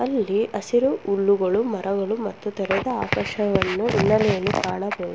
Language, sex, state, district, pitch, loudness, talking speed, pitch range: Kannada, female, Karnataka, Bangalore, 205 Hz, -22 LUFS, 105 wpm, 195-220 Hz